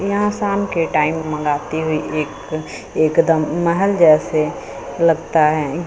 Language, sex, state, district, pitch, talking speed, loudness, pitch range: Hindi, female, Uttar Pradesh, Lucknow, 160 Hz, 135 wpm, -17 LUFS, 155-170 Hz